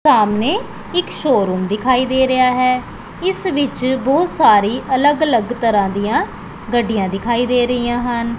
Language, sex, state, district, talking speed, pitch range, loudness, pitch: Punjabi, female, Punjab, Pathankot, 145 wpm, 220-260 Hz, -16 LUFS, 245 Hz